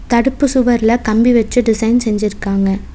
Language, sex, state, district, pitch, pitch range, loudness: Tamil, female, Tamil Nadu, Nilgiris, 230 Hz, 215-245 Hz, -14 LUFS